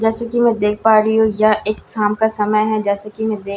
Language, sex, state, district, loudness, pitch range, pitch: Hindi, female, Bihar, Katihar, -16 LUFS, 210-220 Hz, 215 Hz